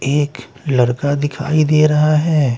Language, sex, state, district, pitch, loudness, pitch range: Hindi, male, Bihar, Patna, 145 Hz, -15 LUFS, 135-155 Hz